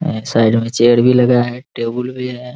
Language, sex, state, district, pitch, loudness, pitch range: Hindi, male, Bihar, Araria, 120 Hz, -15 LUFS, 115-125 Hz